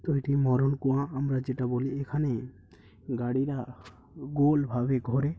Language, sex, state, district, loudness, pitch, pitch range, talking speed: Bengali, male, West Bengal, Paschim Medinipur, -29 LUFS, 135 Hz, 125-140 Hz, 145 wpm